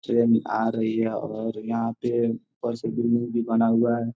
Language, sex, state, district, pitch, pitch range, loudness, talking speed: Hindi, male, Bihar, Gopalganj, 115 Hz, 115-120 Hz, -25 LUFS, 200 wpm